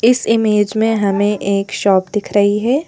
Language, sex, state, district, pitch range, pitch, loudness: Hindi, female, Madhya Pradesh, Bhopal, 200-225 Hz, 210 Hz, -15 LUFS